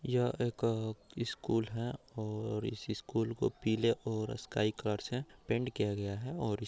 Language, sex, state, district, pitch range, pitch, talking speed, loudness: Hindi, male, Bihar, Araria, 105-120 Hz, 110 Hz, 170 wpm, -36 LUFS